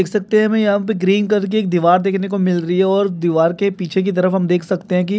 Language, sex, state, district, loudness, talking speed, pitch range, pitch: Hindi, male, Jharkhand, Jamtara, -16 LUFS, 300 wpm, 180-200 Hz, 190 Hz